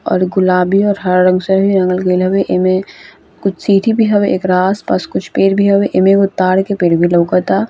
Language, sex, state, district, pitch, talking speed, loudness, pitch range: Bhojpuri, female, Bihar, Gopalganj, 190 Hz, 235 wpm, -13 LUFS, 185-195 Hz